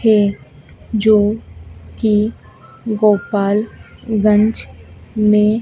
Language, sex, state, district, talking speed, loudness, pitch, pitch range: Hindi, female, Madhya Pradesh, Dhar, 65 wpm, -16 LUFS, 210 Hz, 130-215 Hz